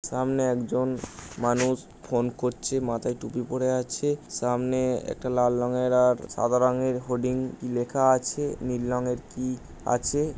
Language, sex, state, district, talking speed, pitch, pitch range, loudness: Bengali, male, West Bengal, Jhargram, 140 wpm, 125 Hz, 125-130 Hz, -27 LUFS